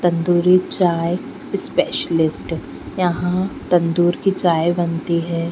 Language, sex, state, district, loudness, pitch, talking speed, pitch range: Hindi, female, Bihar, Patna, -18 LUFS, 175 Hz, 100 wpm, 170-180 Hz